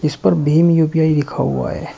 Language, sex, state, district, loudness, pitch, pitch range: Hindi, male, Uttar Pradesh, Shamli, -16 LUFS, 150 Hz, 145-160 Hz